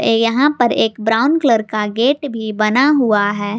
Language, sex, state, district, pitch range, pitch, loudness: Hindi, female, Jharkhand, Garhwa, 215-270 Hz, 225 Hz, -15 LUFS